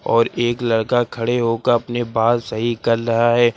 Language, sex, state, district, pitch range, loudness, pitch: Hindi, male, Uttar Pradesh, Lucknow, 115-120 Hz, -18 LUFS, 120 Hz